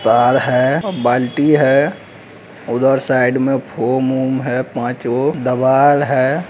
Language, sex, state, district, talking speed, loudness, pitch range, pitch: Hindi, male, Bihar, Araria, 130 wpm, -15 LUFS, 125-135 Hz, 130 Hz